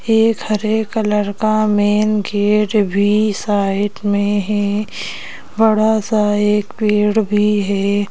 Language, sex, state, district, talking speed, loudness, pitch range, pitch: Hindi, female, Madhya Pradesh, Bhopal, 120 wpm, -16 LUFS, 205-215 Hz, 210 Hz